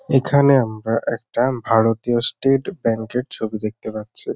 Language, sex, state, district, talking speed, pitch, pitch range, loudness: Bengali, male, West Bengal, North 24 Parganas, 140 wpm, 115 Hz, 110-135 Hz, -19 LUFS